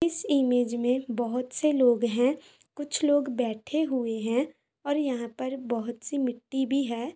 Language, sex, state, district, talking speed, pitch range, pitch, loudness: Hindi, female, Jharkhand, Sahebganj, 170 wpm, 240-285 Hz, 255 Hz, -27 LUFS